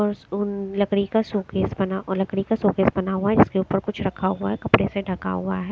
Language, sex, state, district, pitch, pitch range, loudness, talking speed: Hindi, female, Maharashtra, Mumbai Suburban, 195 Hz, 190-205 Hz, -23 LUFS, 230 wpm